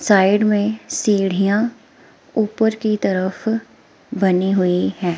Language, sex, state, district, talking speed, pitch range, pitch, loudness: Hindi, female, Himachal Pradesh, Shimla, 105 wpm, 190-220 Hz, 205 Hz, -18 LUFS